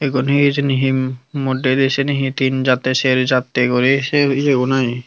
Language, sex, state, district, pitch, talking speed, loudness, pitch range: Chakma, female, Tripura, Unakoti, 130 Hz, 190 wpm, -16 LUFS, 130-140 Hz